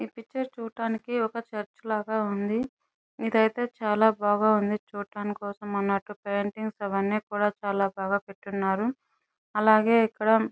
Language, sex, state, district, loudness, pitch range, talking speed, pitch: Telugu, female, Andhra Pradesh, Chittoor, -27 LUFS, 205-225 Hz, 150 wpm, 215 Hz